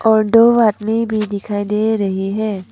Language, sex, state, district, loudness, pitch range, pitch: Hindi, female, Arunachal Pradesh, Papum Pare, -16 LUFS, 205-220 Hz, 215 Hz